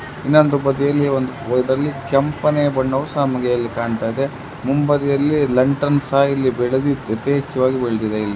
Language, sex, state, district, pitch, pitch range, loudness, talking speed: Kannada, male, Karnataka, Chamarajanagar, 135 Hz, 125-140 Hz, -18 LUFS, 120 wpm